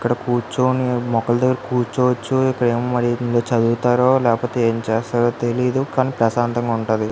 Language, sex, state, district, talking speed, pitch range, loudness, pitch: Telugu, male, Andhra Pradesh, Visakhapatnam, 120 wpm, 120-125 Hz, -19 LUFS, 120 Hz